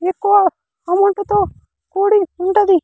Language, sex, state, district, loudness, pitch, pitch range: Telugu, male, Andhra Pradesh, Sri Satya Sai, -16 LUFS, 395 Hz, 370-410 Hz